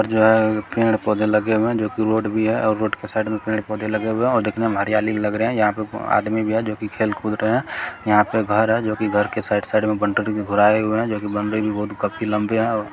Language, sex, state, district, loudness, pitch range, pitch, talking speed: Hindi, male, Bihar, Jamui, -20 LUFS, 105-110 Hz, 110 Hz, 240 wpm